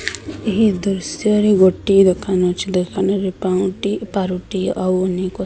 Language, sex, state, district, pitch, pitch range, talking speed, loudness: Odia, female, Odisha, Sambalpur, 190 Hz, 185-200 Hz, 120 wpm, -18 LUFS